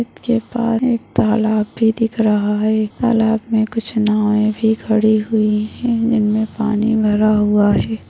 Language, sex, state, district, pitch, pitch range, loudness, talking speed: Hindi, female, Chhattisgarh, Bastar, 220 Hz, 210-225 Hz, -16 LUFS, 155 wpm